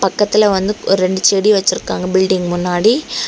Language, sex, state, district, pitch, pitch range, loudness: Tamil, female, Tamil Nadu, Kanyakumari, 195 Hz, 185-210 Hz, -14 LUFS